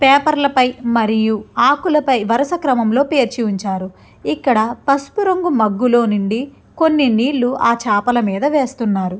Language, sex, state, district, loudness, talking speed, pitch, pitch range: Telugu, female, Andhra Pradesh, Chittoor, -16 LUFS, 130 wpm, 245 Hz, 220-280 Hz